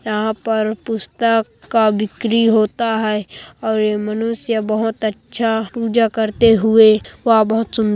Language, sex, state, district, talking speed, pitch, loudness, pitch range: Hindi, female, Chhattisgarh, Kabirdham, 135 wpm, 220 Hz, -17 LUFS, 215-225 Hz